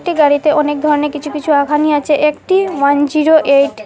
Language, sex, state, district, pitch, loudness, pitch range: Bengali, female, Assam, Hailakandi, 295 Hz, -13 LUFS, 290-305 Hz